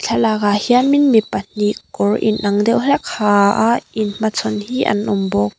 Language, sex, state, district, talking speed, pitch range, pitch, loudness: Mizo, female, Mizoram, Aizawl, 195 wpm, 205-235 Hz, 215 Hz, -16 LUFS